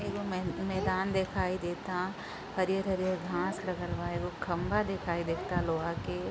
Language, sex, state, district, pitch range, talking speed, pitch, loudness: Bhojpuri, female, Uttar Pradesh, Gorakhpur, 175-190 Hz, 140 wpm, 185 Hz, -33 LUFS